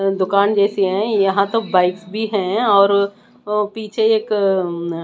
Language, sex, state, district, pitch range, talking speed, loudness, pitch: Hindi, female, Odisha, Malkangiri, 195-215 Hz, 165 wpm, -17 LUFS, 200 Hz